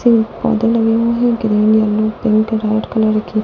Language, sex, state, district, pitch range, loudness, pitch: Hindi, female, Delhi, New Delhi, 215-230 Hz, -15 LUFS, 220 Hz